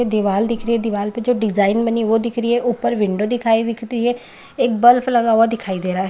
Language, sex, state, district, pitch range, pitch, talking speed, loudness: Hindi, female, Bihar, Madhepura, 215-235 Hz, 230 Hz, 275 wpm, -18 LUFS